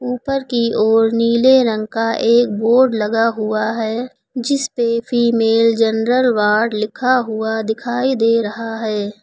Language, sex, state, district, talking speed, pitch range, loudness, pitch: Hindi, female, Uttar Pradesh, Lucknow, 145 wpm, 220-245 Hz, -16 LUFS, 230 Hz